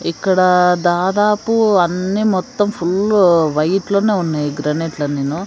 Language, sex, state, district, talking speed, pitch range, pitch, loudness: Telugu, female, Andhra Pradesh, Sri Satya Sai, 110 wpm, 160-205 Hz, 180 Hz, -15 LUFS